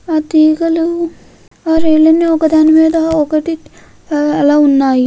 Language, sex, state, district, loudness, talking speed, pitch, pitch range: Telugu, female, Andhra Pradesh, Krishna, -11 LUFS, 70 wpm, 315 Hz, 305-325 Hz